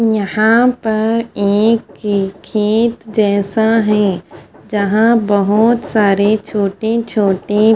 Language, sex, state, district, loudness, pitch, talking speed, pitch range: Hindi, female, Punjab, Fazilka, -14 LUFS, 215 Hz, 95 wpm, 205-225 Hz